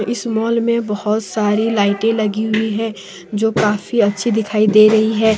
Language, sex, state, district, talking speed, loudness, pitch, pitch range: Hindi, female, Jharkhand, Deoghar, 180 wpm, -16 LUFS, 220 Hz, 210-225 Hz